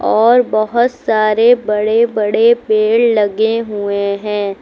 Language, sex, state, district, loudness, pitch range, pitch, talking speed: Hindi, female, Uttar Pradesh, Lucknow, -13 LUFS, 210-235 Hz, 215 Hz, 115 wpm